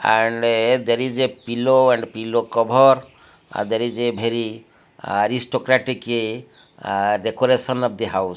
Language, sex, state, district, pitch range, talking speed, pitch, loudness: English, male, Odisha, Malkangiri, 110-130 Hz, 145 wpm, 115 Hz, -19 LUFS